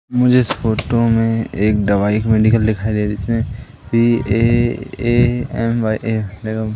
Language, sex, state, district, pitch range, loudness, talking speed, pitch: Hindi, male, Madhya Pradesh, Katni, 110-120 Hz, -16 LUFS, 125 wpm, 115 Hz